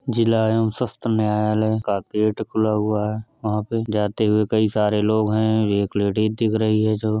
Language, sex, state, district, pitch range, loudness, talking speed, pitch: Hindi, male, Uttar Pradesh, Varanasi, 105-110 Hz, -21 LUFS, 210 wpm, 110 Hz